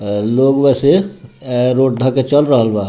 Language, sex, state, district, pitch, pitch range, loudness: Bhojpuri, male, Bihar, Muzaffarpur, 130 Hz, 120-140 Hz, -13 LUFS